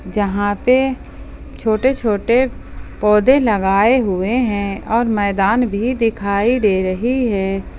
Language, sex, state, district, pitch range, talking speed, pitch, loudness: Hindi, female, Jharkhand, Ranchi, 200-245 Hz, 115 wpm, 215 Hz, -16 LUFS